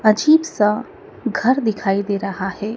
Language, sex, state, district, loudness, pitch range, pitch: Hindi, female, Madhya Pradesh, Dhar, -19 LUFS, 200-240 Hz, 210 Hz